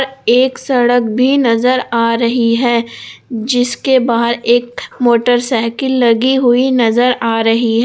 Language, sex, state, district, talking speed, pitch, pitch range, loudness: Hindi, female, Jharkhand, Palamu, 120 wpm, 240 Hz, 235-250 Hz, -13 LUFS